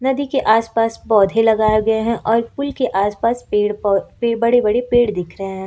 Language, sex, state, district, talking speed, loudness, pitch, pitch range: Hindi, female, Uttar Pradesh, Lucknow, 200 wpm, -17 LUFS, 225 Hz, 210-240 Hz